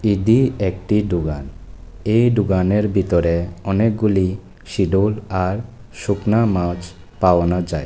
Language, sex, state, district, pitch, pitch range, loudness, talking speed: Bengali, male, Tripura, West Tripura, 95 Hz, 90-105 Hz, -19 LUFS, 100 wpm